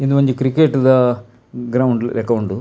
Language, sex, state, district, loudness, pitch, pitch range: Tulu, male, Karnataka, Dakshina Kannada, -16 LUFS, 125 Hz, 120-130 Hz